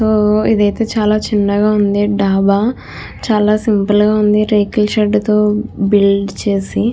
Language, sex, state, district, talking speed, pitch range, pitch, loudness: Telugu, female, Andhra Pradesh, Krishna, 140 wpm, 205-215 Hz, 210 Hz, -13 LUFS